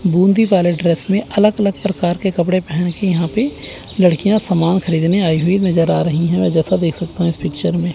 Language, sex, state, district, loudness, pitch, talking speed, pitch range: Hindi, male, Chandigarh, Chandigarh, -16 LUFS, 175 Hz, 225 wpm, 170-195 Hz